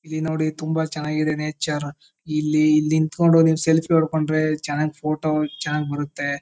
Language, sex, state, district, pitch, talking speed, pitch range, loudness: Kannada, male, Karnataka, Chamarajanagar, 155 Hz, 140 wpm, 150-160 Hz, -21 LUFS